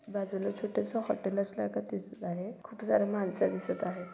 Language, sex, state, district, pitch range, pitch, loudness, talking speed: Marathi, female, Maharashtra, Solapur, 180-205 Hz, 195 Hz, -34 LUFS, 160 wpm